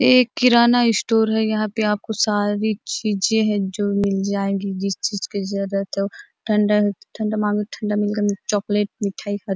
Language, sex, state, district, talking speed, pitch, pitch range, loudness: Hindi, female, Chhattisgarh, Bastar, 155 wpm, 210 Hz, 200-220 Hz, -20 LUFS